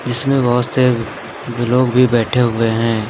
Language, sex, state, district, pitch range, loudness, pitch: Hindi, male, Uttar Pradesh, Lucknow, 115-125 Hz, -15 LUFS, 120 Hz